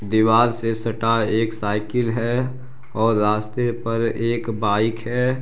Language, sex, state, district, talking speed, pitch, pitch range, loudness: Hindi, male, Bihar, Jamui, 135 wpm, 115 Hz, 110-120 Hz, -21 LUFS